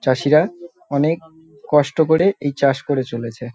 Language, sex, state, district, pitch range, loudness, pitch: Bengali, male, West Bengal, North 24 Parganas, 135-160 Hz, -18 LUFS, 145 Hz